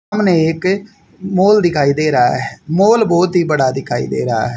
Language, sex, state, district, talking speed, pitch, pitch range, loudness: Hindi, male, Haryana, Charkhi Dadri, 195 wpm, 175 Hz, 155-195 Hz, -14 LUFS